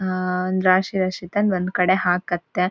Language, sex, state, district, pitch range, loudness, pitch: Kannada, female, Karnataka, Shimoga, 180-185 Hz, -21 LUFS, 185 Hz